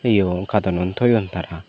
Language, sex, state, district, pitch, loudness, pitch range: Chakma, male, Tripura, Dhalai, 95 Hz, -20 LUFS, 90-110 Hz